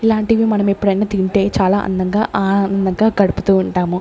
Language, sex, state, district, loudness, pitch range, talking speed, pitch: Telugu, female, Andhra Pradesh, Sri Satya Sai, -16 LUFS, 190-210 Hz, 135 wpm, 200 Hz